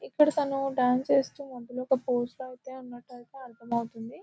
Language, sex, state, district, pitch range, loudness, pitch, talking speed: Telugu, female, Telangana, Nalgonda, 245-270 Hz, -28 LUFS, 255 Hz, 140 wpm